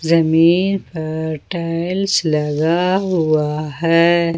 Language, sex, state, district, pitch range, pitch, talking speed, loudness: Hindi, female, Jharkhand, Ranchi, 155-175 Hz, 165 Hz, 80 wpm, -17 LUFS